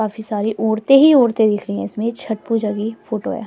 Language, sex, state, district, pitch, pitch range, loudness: Hindi, female, Delhi, New Delhi, 220 Hz, 215-230 Hz, -17 LUFS